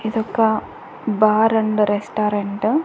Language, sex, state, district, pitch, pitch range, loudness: Telugu, female, Andhra Pradesh, Annamaya, 215 Hz, 210-220 Hz, -19 LUFS